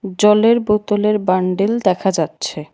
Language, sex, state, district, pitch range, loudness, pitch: Bengali, female, Tripura, West Tripura, 185-210 Hz, -16 LUFS, 200 Hz